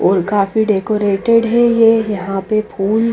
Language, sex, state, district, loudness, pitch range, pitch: Hindi, female, Bihar, Patna, -14 LUFS, 195-225 Hz, 215 Hz